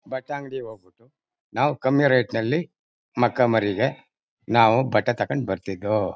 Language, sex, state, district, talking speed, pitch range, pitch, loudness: Kannada, male, Karnataka, Mysore, 125 wpm, 110-135 Hz, 120 Hz, -22 LUFS